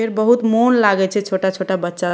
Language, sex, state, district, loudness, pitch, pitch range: Maithili, female, Bihar, Madhepura, -16 LUFS, 200 Hz, 190-225 Hz